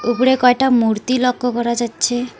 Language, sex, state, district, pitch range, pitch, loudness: Bengali, female, West Bengal, Alipurduar, 240-250 Hz, 245 Hz, -16 LUFS